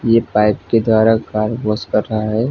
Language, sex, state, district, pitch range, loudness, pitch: Hindi, male, Jharkhand, Jamtara, 105-115 Hz, -16 LUFS, 110 Hz